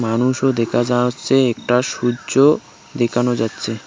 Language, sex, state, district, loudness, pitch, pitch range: Bengali, male, West Bengal, Cooch Behar, -18 LUFS, 120 Hz, 115-130 Hz